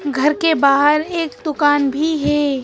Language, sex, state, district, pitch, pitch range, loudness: Hindi, female, Madhya Pradesh, Bhopal, 295 Hz, 285-310 Hz, -16 LUFS